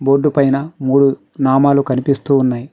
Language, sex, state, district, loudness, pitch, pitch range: Telugu, male, Telangana, Mahabubabad, -15 LUFS, 140 Hz, 135-140 Hz